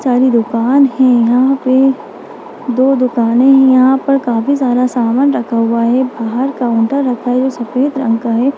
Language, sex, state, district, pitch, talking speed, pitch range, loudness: Hindi, female, Bihar, Lakhisarai, 255 Hz, 180 wpm, 235-270 Hz, -12 LUFS